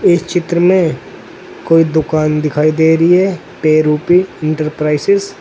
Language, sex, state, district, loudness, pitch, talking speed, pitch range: Hindi, male, Uttar Pradesh, Saharanpur, -13 LUFS, 160 Hz, 145 wpm, 155-175 Hz